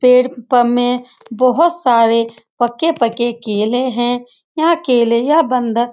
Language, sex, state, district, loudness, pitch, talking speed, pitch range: Hindi, female, Bihar, Saran, -15 LUFS, 245 Hz, 120 wpm, 235-255 Hz